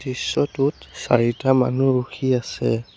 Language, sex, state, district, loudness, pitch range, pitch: Assamese, male, Assam, Sonitpur, -21 LUFS, 120-135 Hz, 130 Hz